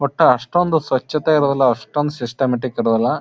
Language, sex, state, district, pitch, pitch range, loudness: Kannada, male, Karnataka, Bijapur, 130 Hz, 125-150 Hz, -18 LUFS